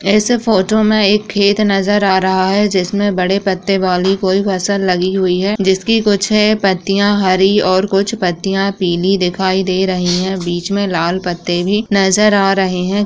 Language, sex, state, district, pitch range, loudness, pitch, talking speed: Hindi, female, Uttar Pradesh, Budaun, 185-205 Hz, -14 LUFS, 195 Hz, 180 wpm